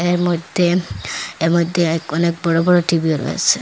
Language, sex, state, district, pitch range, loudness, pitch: Bengali, female, Assam, Hailakandi, 165-175 Hz, -18 LUFS, 170 Hz